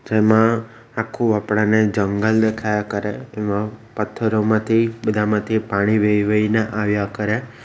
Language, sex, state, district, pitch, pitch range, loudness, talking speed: Gujarati, male, Gujarat, Valsad, 110 Hz, 105-110 Hz, -19 LUFS, 110 wpm